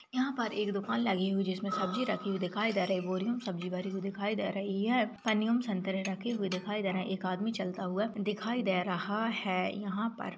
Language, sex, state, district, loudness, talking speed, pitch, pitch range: Hindi, female, Chhattisgarh, Jashpur, -33 LUFS, 245 wpm, 200 Hz, 190-220 Hz